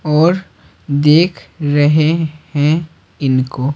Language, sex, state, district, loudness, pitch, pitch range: Hindi, male, Bihar, Patna, -15 LUFS, 150 Hz, 145-165 Hz